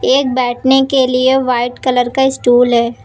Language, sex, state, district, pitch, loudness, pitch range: Hindi, female, Uttar Pradesh, Lucknow, 255 Hz, -13 LUFS, 245-265 Hz